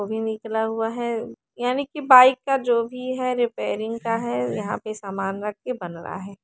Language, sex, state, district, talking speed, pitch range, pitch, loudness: Hindi, female, Haryana, Charkhi Dadri, 215 wpm, 210-250 Hz, 230 Hz, -23 LUFS